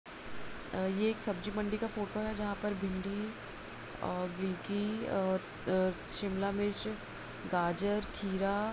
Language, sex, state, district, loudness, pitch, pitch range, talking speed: Hindi, female, Bihar, Jamui, -36 LUFS, 200 Hz, 190-210 Hz, 125 wpm